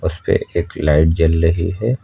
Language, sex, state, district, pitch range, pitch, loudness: Hindi, male, Uttar Pradesh, Lucknow, 80-95 Hz, 80 Hz, -17 LUFS